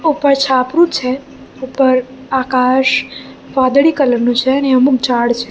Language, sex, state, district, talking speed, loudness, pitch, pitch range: Gujarati, female, Gujarat, Gandhinagar, 140 wpm, -13 LUFS, 260 Hz, 255-275 Hz